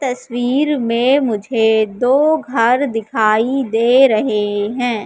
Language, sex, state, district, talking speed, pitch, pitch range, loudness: Hindi, female, Madhya Pradesh, Katni, 105 wpm, 245 Hz, 220-265 Hz, -15 LUFS